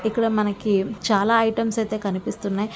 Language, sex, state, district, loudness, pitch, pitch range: Telugu, female, Andhra Pradesh, Visakhapatnam, -22 LUFS, 215 Hz, 200-225 Hz